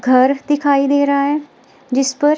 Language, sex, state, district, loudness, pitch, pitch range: Hindi, female, Himachal Pradesh, Shimla, -16 LUFS, 280 Hz, 270-290 Hz